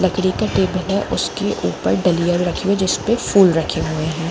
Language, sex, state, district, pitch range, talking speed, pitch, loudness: Hindi, female, Jharkhand, Jamtara, 160-190 Hz, 180 wpm, 180 Hz, -18 LUFS